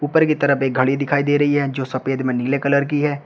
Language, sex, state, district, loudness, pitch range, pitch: Hindi, male, Uttar Pradesh, Shamli, -19 LUFS, 135-145 Hz, 140 Hz